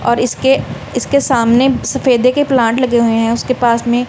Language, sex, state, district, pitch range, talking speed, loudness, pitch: Hindi, female, Punjab, Kapurthala, 235-265 Hz, 190 wpm, -13 LUFS, 245 Hz